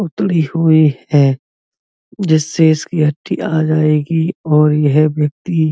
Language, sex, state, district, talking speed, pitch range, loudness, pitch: Hindi, male, Uttar Pradesh, Muzaffarnagar, 125 wpm, 150-165 Hz, -14 LUFS, 155 Hz